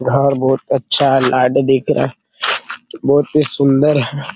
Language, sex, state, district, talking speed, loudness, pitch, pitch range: Hindi, male, Bihar, Araria, 190 wpm, -15 LUFS, 140 Hz, 135-145 Hz